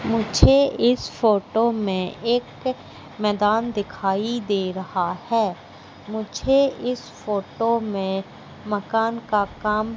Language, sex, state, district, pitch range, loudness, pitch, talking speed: Hindi, female, Madhya Pradesh, Katni, 200-230 Hz, -22 LUFS, 215 Hz, 100 wpm